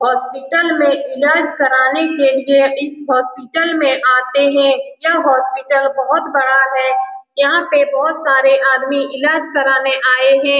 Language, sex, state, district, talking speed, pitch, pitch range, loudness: Hindi, female, Bihar, Saran, 155 wpm, 275 Hz, 265-295 Hz, -13 LUFS